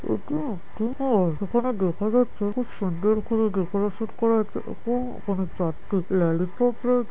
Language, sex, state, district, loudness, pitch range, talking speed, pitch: Bengali, female, West Bengal, Kolkata, -25 LUFS, 190-240 Hz, 135 wpm, 215 Hz